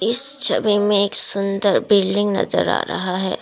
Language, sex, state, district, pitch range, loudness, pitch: Hindi, female, Assam, Kamrup Metropolitan, 195-210 Hz, -18 LUFS, 200 Hz